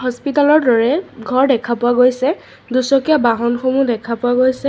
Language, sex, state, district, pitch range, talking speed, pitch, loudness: Assamese, female, Assam, Sonitpur, 240-275 Hz, 140 wpm, 255 Hz, -15 LUFS